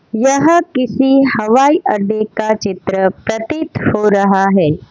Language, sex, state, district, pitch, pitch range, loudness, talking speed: Hindi, female, Gujarat, Valsad, 220 Hz, 200-270 Hz, -13 LUFS, 120 wpm